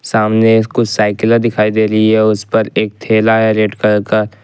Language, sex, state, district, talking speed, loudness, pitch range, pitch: Hindi, male, Jharkhand, Ranchi, 190 wpm, -12 LUFS, 105-110 Hz, 110 Hz